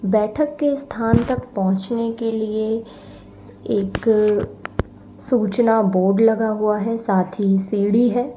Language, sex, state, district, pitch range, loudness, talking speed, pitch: Hindi, female, Uttar Pradesh, Lalitpur, 195-230 Hz, -20 LUFS, 120 wpm, 220 Hz